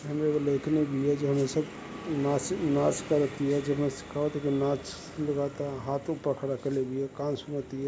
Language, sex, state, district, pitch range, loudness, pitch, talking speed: Bhojpuri, male, Uttar Pradesh, Gorakhpur, 135-145 Hz, -30 LUFS, 140 Hz, 120 wpm